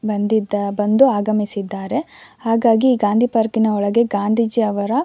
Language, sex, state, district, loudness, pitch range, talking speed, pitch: Kannada, female, Karnataka, Shimoga, -18 LUFS, 205-230 Hz, 120 wpm, 215 Hz